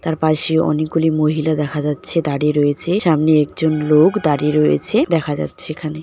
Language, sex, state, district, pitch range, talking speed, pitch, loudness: Bengali, female, West Bengal, Jalpaiguri, 150-160 Hz, 170 wpm, 155 Hz, -16 LUFS